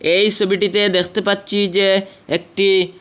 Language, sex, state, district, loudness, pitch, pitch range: Bengali, male, Assam, Hailakandi, -16 LUFS, 200 Hz, 195-205 Hz